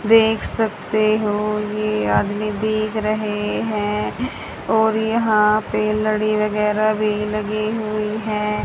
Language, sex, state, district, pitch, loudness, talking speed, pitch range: Hindi, male, Haryana, Charkhi Dadri, 215 Hz, -20 LUFS, 120 wpm, 210-215 Hz